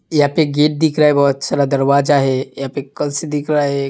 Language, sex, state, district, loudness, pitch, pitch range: Hindi, male, Uttar Pradesh, Hamirpur, -16 LUFS, 145 Hz, 140-150 Hz